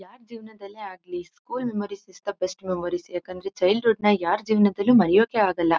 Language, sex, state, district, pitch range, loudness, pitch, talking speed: Kannada, female, Karnataka, Mysore, 180-215 Hz, -23 LUFS, 200 Hz, 175 wpm